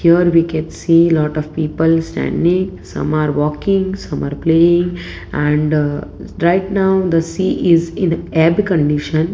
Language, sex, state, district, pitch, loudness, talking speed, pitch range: English, female, Gujarat, Valsad, 165 Hz, -15 LUFS, 140 wpm, 155-175 Hz